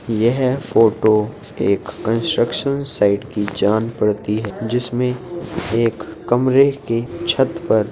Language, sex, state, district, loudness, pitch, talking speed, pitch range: Hindi, male, Uttar Pradesh, Jyotiba Phule Nagar, -18 LUFS, 115 Hz, 120 wpm, 110-135 Hz